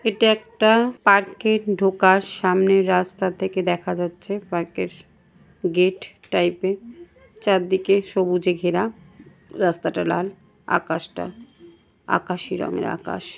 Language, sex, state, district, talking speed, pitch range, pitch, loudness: Bengali, female, West Bengal, Kolkata, 110 wpm, 180-200 Hz, 190 Hz, -21 LUFS